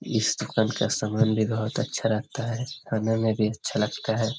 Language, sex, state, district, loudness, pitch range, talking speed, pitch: Hindi, male, Bihar, Jamui, -26 LUFS, 110-115 Hz, 205 wpm, 110 Hz